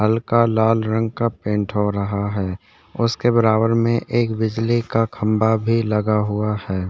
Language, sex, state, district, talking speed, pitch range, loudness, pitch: Hindi, male, Chhattisgarh, Sukma, 165 wpm, 105-115 Hz, -19 LUFS, 110 Hz